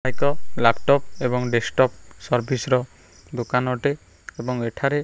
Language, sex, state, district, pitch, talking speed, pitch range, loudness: Odia, male, Odisha, Khordha, 125 Hz, 130 wpm, 115-140 Hz, -23 LUFS